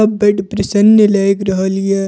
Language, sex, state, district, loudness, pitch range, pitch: Maithili, female, Bihar, Purnia, -12 LUFS, 195-210 Hz, 200 Hz